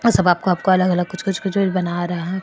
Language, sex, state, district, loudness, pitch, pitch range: Marwari, female, Rajasthan, Churu, -19 LUFS, 185 Hz, 175-190 Hz